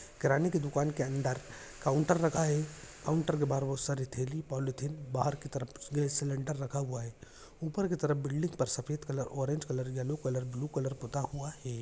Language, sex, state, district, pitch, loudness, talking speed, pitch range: Hindi, male, Rajasthan, Nagaur, 140 Hz, -34 LUFS, 200 wpm, 130-150 Hz